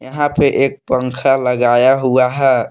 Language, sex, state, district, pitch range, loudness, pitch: Hindi, male, Jharkhand, Palamu, 125-135 Hz, -14 LUFS, 130 Hz